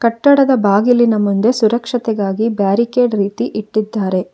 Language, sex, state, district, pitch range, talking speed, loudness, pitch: Kannada, female, Karnataka, Bangalore, 205-240 Hz, 95 wpm, -14 LUFS, 220 Hz